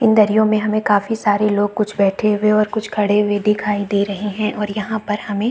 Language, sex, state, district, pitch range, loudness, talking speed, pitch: Hindi, female, Chhattisgarh, Bastar, 205-215 Hz, -17 LUFS, 250 wpm, 210 Hz